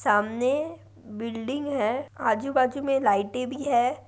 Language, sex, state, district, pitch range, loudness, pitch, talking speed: Hindi, female, Maharashtra, Nagpur, 230-275 Hz, -26 LUFS, 255 Hz, 130 wpm